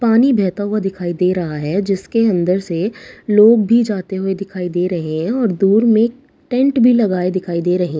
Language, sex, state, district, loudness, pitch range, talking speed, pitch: Hindi, female, Bihar, Katihar, -16 LUFS, 180-230 Hz, 225 wpm, 195 Hz